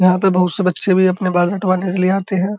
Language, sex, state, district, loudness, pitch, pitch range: Hindi, male, Uttar Pradesh, Muzaffarnagar, -16 LUFS, 185 Hz, 185-190 Hz